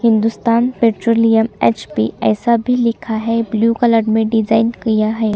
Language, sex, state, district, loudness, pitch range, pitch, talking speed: Hindi, female, Chhattisgarh, Sukma, -15 LUFS, 220-230 Hz, 225 Hz, 155 wpm